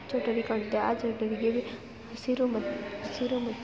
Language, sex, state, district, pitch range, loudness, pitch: Kannada, female, Karnataka, Mysore, 225-250 Hz, -31 LUFS, 230 Hz